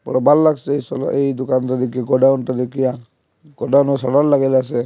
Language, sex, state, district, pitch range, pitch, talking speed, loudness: Bengali, male, Assam, Hailakandi, 130-140 Hz, 135 Hz, 135 wpm, -17 LUFS